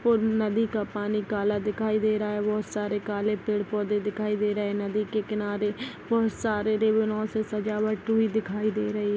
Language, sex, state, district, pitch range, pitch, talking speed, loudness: Hindi, female, Maharashtra, Aurangabad, 210-215 Hz, 210 Hz, 205 wpm, -27 LUFS